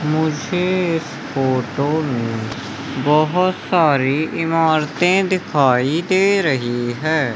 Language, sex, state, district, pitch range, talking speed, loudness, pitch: Hindi, male, Madhya Pradesh, Umaria, 135-170 Hz, 90 wpm, -18 LUFS, 155 Hz